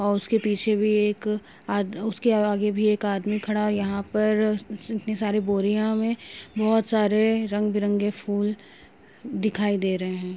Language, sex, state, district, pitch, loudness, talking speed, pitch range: Hindi, female, Uttar Pradesh, Gorakhpur, 210 Hz, -24 LUFS, 155 wpm, 205-215 Hz